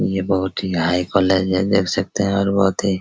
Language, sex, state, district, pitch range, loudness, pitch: Hindi, male, Bihar, Araria, 95-100 Hz, -19 LUFS, 95 Hz